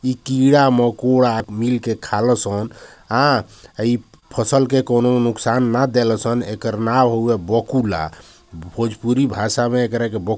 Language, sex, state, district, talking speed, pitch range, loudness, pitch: Bhojpuri, male, Bihar, Gopalganj, 140 wpm, 110-125 Hz, -18 LUFS, 120 Hz